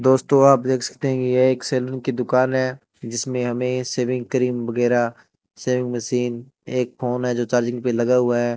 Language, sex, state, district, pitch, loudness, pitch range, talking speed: Hindi, male, Rajasthan, Bikaner, 125 Hz, -21 LUFS, 120-130 Hz, 195 wpm